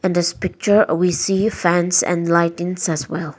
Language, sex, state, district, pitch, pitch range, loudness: English, female, Nagaland, Dimapur, 175 Hz, 170-185 Hz, -18 LUFS